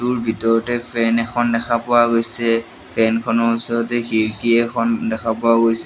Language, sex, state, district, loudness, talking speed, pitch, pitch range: Assamese, male, Assam, Sonitpur, -18 LUFS, 155 wpm, 115 Hz, 115-120 Hz